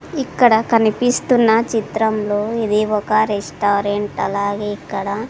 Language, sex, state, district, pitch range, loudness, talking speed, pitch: Telugu, female, Andhra Pradesh, Sri Satya Sai, 205-225 Hz, -17 LUFS, 90 wpm, 215 Hz